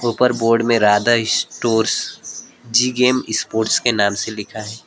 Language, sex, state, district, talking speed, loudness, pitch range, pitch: Hindi, male, West Bengal, Alipurduar, 160 wpm, -17 LUFS, 110-120 Hz, 115 Hz